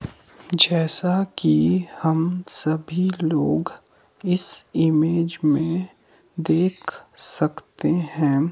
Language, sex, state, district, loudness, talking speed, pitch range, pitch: Hindi, male, Himachal Pradesh, Shimla, -21 LUFS, 75 wpm, 155-180 Hz, 165 Hz